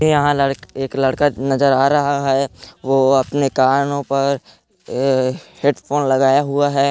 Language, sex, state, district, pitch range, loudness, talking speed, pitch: Chhattisgarhi, male, Chhattisgarh, Korba, 135-140 Hz, -17 LUFS, 145 wpm, 135 Hz